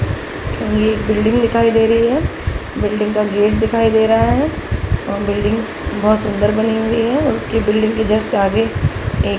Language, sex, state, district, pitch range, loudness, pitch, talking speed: Hindi, female, Bihar, Araria, 210-225 Hz, -16 LUFS, 220 Hz, 185 wpm